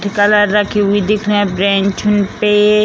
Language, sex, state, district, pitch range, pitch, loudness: Hindi, female, Bihar, Jamui, 200-210 Hz, 205 Hz, -13 LUFS